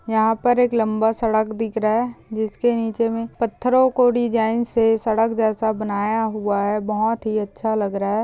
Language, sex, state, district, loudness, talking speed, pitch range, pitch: Hindi, female, Maharashtra, Solapur, -20 LUFS, 190 wpm, 215-230 Hz, 225 Hz